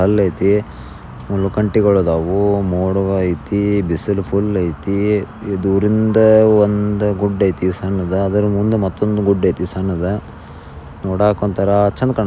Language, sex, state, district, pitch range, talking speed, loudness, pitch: Kannada, male, Karnataka, Belgaum, 95-105 Hz, 115 wpm, -16 LUFS, 100 Hz